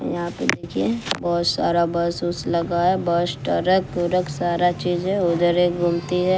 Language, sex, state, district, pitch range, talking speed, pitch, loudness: Hindi, female, Bihar, West Champaran, 170-180 Hz, 170 wpm, 175 Hz, -21 LUFS